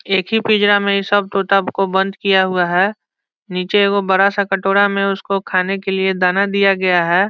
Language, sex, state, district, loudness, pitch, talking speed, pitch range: Hindi, male, Bihar, Saran, -15 LUFS, 195 Hz, 205 wpm, 190-200 Hz